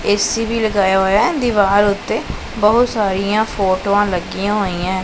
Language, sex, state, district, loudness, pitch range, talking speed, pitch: Punjabi, male, Punjab, Pathankot, -16 LUFS, 195-215 Hz, 130 wpm, 205 Hz